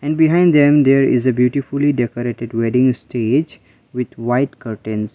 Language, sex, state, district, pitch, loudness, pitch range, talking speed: English, male, Mizoram, Aizawl, 125 Hz, -16 LUFS, 120-145 Hz, 150 wpm